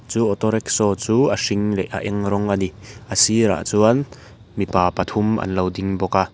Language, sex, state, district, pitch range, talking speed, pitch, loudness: Mizo, male, Mizoram, Aizawl, 95-110 Hz, 180 wpm, 105 Hz, -19 LUFS